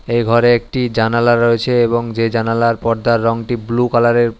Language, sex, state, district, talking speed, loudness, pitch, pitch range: Bengali, male, West Bengal, Alipurduar, 165 wpm, -15 LUFS, 115 Hz, 115-120 Hz